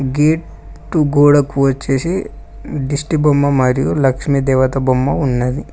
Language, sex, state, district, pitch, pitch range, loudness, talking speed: Telugu, male, Telangana, Mahabubabad, 140 Hz, 135-145 Hz, -15 LUFS, 105 wpm